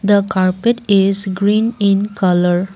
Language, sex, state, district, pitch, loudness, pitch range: English, female, Assam, Kamrup Metropolitan, 195 Hz, -15 LUFS, 190-205 Hz